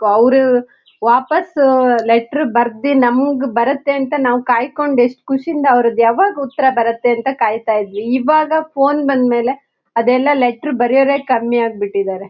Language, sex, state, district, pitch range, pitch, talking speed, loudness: Kannada, female, Karnataka, Shimoga, 235-280 Hz, 255 Hz, 120 wpm, -14 LUFS